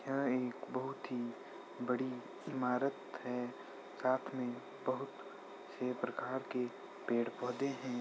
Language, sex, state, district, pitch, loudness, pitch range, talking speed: Hindi, male, Uttar Pradesh, Ghazipur, 125 Hz, -40 LUFS, 125-130 Hz, 120 wpm